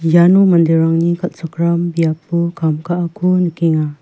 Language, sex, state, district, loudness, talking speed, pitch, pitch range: Garo, female, Meghalaya, West Garo Hills, -15 LUFS, 105 wpm, 170 Hz, 165-175 Hz